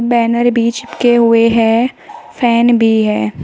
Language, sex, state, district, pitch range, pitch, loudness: Hindi, female, Uttar Pradesh, Shamli, 225-240 Hz, 230 Hz, -12 LUFS